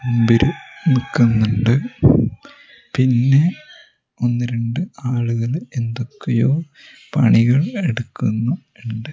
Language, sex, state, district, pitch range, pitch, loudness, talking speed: Malayalam, male, Kerala, Kozhikode, 115-135 Hz, 120 Hz, -18 LUFS, 60 wpm